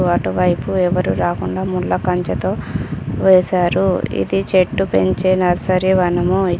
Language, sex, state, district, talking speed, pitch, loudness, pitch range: Telugu, female, Telangana, Komaram Bheem, 100 wpm, 180 Hz, -17 LUFS, 175-185 Hz